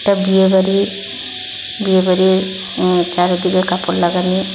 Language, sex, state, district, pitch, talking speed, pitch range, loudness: Bengali, female, Assam, Hailakandi, 190 Hz, 90 wpm, 180-190 Hz, -15 LUFS